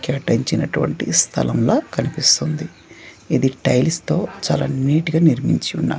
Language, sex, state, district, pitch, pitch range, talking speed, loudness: Telugu, male, Andhra Pradesh, Manyam, 155 Hz, 135-165 Hz, 110 wpm, -18 LUFS